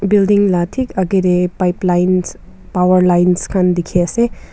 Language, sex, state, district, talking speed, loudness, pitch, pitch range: Nagamese, female, Nagaland, Kohima, 160 wpm, -14 LUFS, 180 Hz, 175-190 Hz